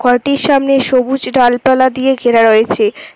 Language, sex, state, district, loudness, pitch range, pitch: Bengali, female, West Bengal, Cooch Behar, -11 LUFS, 240-270 Hz, 260 Hz